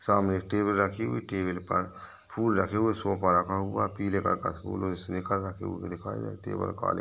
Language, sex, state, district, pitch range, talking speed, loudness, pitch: Hindi, male, Chhattisgarh, Balrampur, 90-105 Hz, 215 wpm, -29 LUFS, 95 Hz